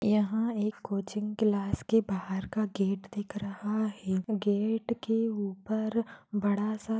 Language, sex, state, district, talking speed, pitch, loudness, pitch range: Hindi, female, Maharashtra, Pune, 135 wpm, 210 Hz, -31 LUFS, 200-220 Hz